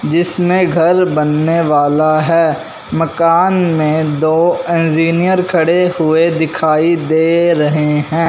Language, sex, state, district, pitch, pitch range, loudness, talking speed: Hindi, male, Punjab, Fazilka, 165 Hz, 155-170 Hz, -13 LUFS, 110 wpm